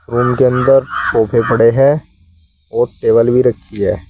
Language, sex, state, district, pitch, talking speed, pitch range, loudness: Hindi, male, Uttar Pradesh, Saharanpur, 115 Hz, 160 wpm, 100-125 Hz, -13 LUFS